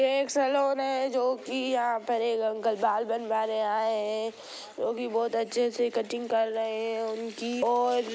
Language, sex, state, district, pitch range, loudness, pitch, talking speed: Bhojpuri, female, Bihar, Gopalganj, 225-245 Hz, -28 LUFS, 230 Hz, 185 wpm